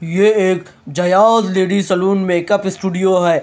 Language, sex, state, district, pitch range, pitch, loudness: Hindi, male, Bihar, Katihar, 180-200 Hz, 190 Hz, -15 LUFS